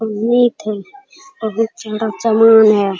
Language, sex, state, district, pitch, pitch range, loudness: Hindi, male, Bihar, Araria, 220 Hz, 215-235 Hz, -14 LUFS